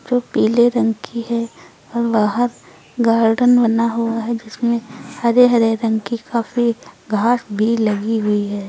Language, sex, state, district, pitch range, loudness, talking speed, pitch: Hindi, female, Uttar Pradesh, Lucknow, 225-235 Hz, -17 LUFS, 145 wpm, 230 Hz